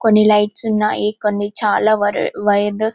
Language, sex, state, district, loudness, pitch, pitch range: Telugu, female, Telangana, Karimnagar, -16 LUFS, 210 Hz, 205-215 Hz